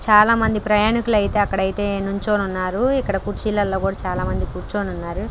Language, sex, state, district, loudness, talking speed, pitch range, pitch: Telugu, female, Andhra Pradesh, Krishna, -20 LUFS, 145 wpm, 195-215 Hz, 205 Hz